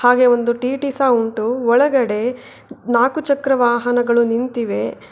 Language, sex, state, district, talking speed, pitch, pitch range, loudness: Kannada, female, Karnataka, Bangalore, 105 wpm, 245 Hz, 235-260 Hz, -17 LUFS